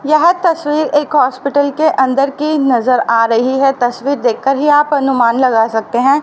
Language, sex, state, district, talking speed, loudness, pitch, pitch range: Hindi, female, Haryana, Rohtak, 185 wpm, -13 LUFS, 275 Hz, 250-295 Hz